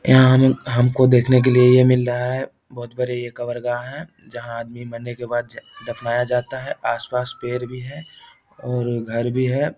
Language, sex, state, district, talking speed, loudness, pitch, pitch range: Hindi, male, Bihar, Samastipur, 190 wpm, -19 LUFS, 125 Hz, 120-130 Hz